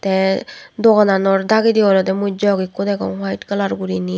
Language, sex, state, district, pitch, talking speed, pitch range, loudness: Chakma, female, Tripura, West Tripura, 195 Hz, 160 wpm, 185-200 Hz, -16 LUFS